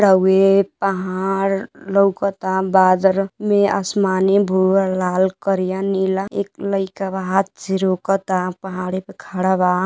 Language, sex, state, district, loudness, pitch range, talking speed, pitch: Bhojpuri, female, Uttar Pradesh, Deoria, -18 LUFS, 185-195 Hz, 120 wpm, 190 Hz